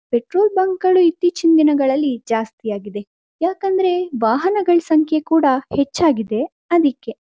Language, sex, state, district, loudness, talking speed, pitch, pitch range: Kannada, female, Karnataka, Mysore, -17 LUFS, 110 wpm, 310 Hz, 240-360 Hz